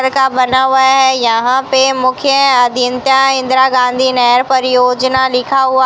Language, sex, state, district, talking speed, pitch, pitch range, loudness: Hindi, female, Rajasthan, Bikaner, 145 wpm, 260 Hz, 250-265 Hz, -11 LUFS